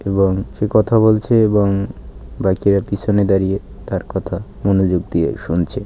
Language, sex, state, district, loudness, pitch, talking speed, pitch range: Bengali, male, West Bengal, Kolkata, -17 LUFS, 100 Hz, 135 wpm, 95-105 Hz